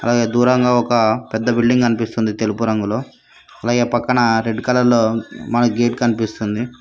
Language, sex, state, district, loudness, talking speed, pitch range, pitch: Telugu, female, Telangana, Mahabubabad, -17 LUFS, 140 wpm, 110-120 Hz, 120 Hz